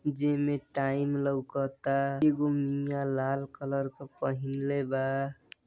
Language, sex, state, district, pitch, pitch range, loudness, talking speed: Bhojpuri, male, Uttar Pradesh, Deoria, 140 Hz, 135-140 Hz, -31 LUFS, 125 wpm